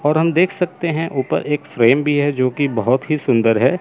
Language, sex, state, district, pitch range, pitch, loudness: Hindi, male, Chandigarh, Chandigarh, 130-160 Hz, 145 Hz, -17 LUFS